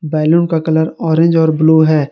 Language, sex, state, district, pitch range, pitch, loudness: Hindi, male, Jharkhand, Garhwa, 155-165 Hz, 160 Hz, -12 LUFS